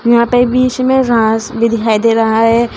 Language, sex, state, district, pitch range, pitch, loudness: Hindi, female, Uttar Pradesh, Shamli, 225-245 Hz, 230 Hz, -12 LUFS